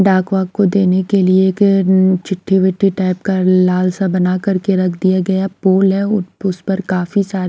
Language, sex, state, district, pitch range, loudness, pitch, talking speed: Hindi, female, Himachal Pradesh, Shimla, 185-195 Hz, -14 LUFS, 190 Hz, 190 wpm